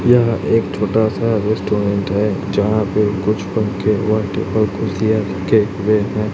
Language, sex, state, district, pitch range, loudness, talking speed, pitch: Hindi, male, Chhattisgarh, Raipur, 100-110 Hz, -17 LUFS, 150 wpm, 105 Hz